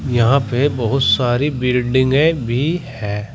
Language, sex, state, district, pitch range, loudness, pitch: Hindi, male, Uttar Pradesh, Saharanpur, 120-140 Hz, -17 LUFS, 130 Hz